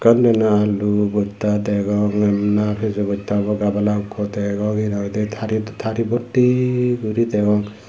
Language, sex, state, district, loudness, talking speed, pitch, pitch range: Chakma, male, Tripura, Dhalai, -19 LUFS, 135 wpm, 105 Hz, 105-110 Hz